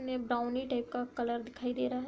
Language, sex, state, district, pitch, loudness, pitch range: Hindi, female, Uttar Pradesh, Hamirpur, 245 Hz, -35 LUFS, 240-255 Hz